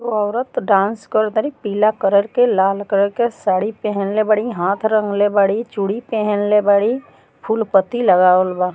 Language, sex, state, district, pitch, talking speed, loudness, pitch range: Bhojpuri, female, Bihar, Muzaffarpur, 210 Hz, 165 wpm, -17 LUFS, 195-220 Hz